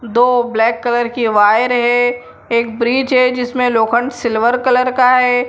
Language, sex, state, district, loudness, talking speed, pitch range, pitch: Hindi, female, Maharashtra, Mumbai Suburban, -14 LUFS, 165 wpm, 235-250 Hz, 245 Hz